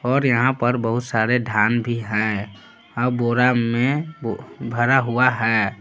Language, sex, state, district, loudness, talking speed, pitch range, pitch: Hindi, male, Jharkhand, Palamu, -20 LUFS, 145 wpm, 115-125 Hz, 120 Hz